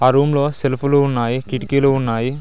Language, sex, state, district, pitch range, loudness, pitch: Telugu, male, Telangana, Mahabubabad, 130-140 Hz, -17 LUFS, 135 Hz